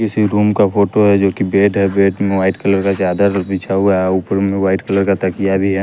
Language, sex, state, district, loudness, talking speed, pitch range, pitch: Hindi, male, Bihar, West Champaran, -15 LUFS, 265 wpm, 95-100 Hz, 100 Hz